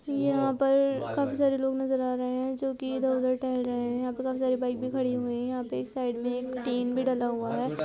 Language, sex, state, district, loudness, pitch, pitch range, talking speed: Hindi, female, Uttar Pradesh, Ghazipur, -29 LUFS, 255 Hz, 245-265 Hz, 270 wpm